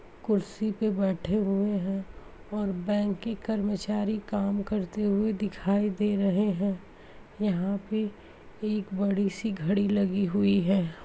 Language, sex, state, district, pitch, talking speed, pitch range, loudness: Hindi, female, Uttar Pradesh, Muzaffarnagar, 200 Hz, 130 wpm, 195-210 Hz, -28 LUFS